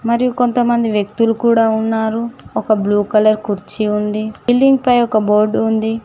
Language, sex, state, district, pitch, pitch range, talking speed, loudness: Telugu, female, Telangana, Mahabubabad, 220 Hz, 215-235 Hz, 150 wpm, -15 LUFS